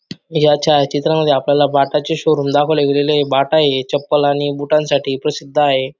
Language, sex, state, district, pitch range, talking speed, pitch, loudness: Marathi, male, Maharashtra, Dhule, 140-150 Hz, 160 wpm, 145 Hz, -15 LUFS